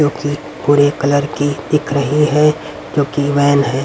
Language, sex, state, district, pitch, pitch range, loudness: Hindi, male, Haryana, Rohtak, 145 Hz, 145-150 Hz, -15 LUFS